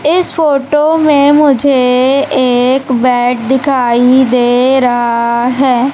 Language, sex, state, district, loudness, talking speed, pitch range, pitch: Hindi, male, Madhya Pradesh, Umaria, -10 LUFS, 100 wpm, 245-280 Hz, 260 Hz